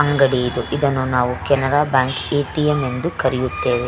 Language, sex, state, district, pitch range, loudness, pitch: Kannada, female, Karnataka, Belgaum, 125-145 Hz, -19 LUFS, 130 Hz